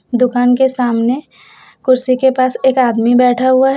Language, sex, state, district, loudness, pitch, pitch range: Hindi, female, Jharkhand, Deoghar, -13 LUFS, 255 Hz, 245-260 Hz